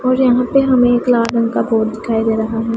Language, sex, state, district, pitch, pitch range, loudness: Hindi, female, Punjab, Pathankot, 235 Hz, 225-250 Hz, -15 LUFS